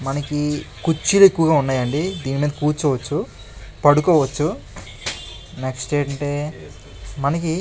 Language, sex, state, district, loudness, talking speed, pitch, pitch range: Telugu, male, Andhra Pradesh, Krishna, -20 LUFS, 85 wpm, 145 Hz, 135-150 Hz